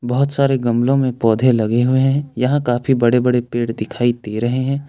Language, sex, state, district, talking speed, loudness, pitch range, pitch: Hindi, male, Jharkhand, Ranchi, 210 wpm, -17 LUFS, 120-135 Hz, 125 Hz